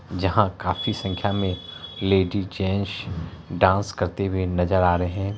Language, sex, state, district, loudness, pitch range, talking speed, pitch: Hindi, male, Bihar, Araria, -24 LUFS, 90-100 Hz, 145 wpm, 95 Hz